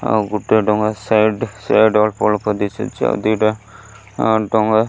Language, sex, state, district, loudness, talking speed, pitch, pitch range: Odia, male, Odisha, Malkangiri, -17 LUFS, 135 wpm, 110 Hz, 105-110 Hz